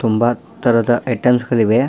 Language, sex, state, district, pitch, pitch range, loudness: Kannada, male, Karnataka, Dharwad, 120 Hz, 115-125 Hz, -16 LUFS